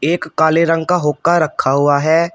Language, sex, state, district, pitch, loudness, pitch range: Hindi, male, Uttar Pradesh, Shamli, 160 Hz, -14 LUFS, 150-170 Hz